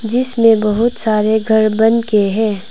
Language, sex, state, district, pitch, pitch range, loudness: Hindi, female, Arunachal Pradesh, Papum Pare, 220 Hz, 215-230 Hz, -14 LUFS